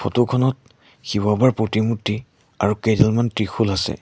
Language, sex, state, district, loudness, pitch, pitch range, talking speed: Assamese, male, Assam, Sonitpur, -20 LUFS, 110 Hz, 105-120 Hz, 135 wpm